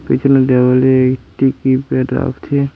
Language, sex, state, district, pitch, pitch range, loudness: Bengali, male, West Bengal, Cooch Behar, 130 Hz, 130-135 Hz, -14 LUFS